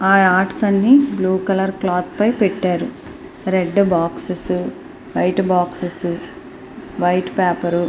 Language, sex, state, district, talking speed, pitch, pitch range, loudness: Telugu, female, Andhra Pradesh, Srikakulam, 115 wpm, 185 Hz, 175-195 Hz, -18 LUFS